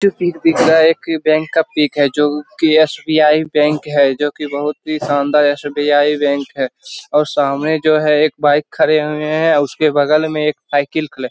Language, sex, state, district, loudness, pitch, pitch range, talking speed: Hindi, male, Bihar, Jamui, -15 LUFS, 150 Hz, 145-155 Hz, 190 wpm